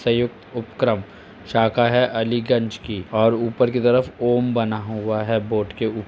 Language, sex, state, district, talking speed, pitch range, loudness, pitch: Hindi, male, Uttar Pradesh, Etah, 175 wpm, 110-120 Hz, -21 LUFS, 115 Hz